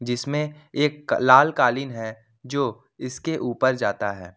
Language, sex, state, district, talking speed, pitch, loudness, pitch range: Hindi, male, Jharkhand, Ranchi, 135 wpm, 130 Hz, -22 LUFS, 120-145 Hz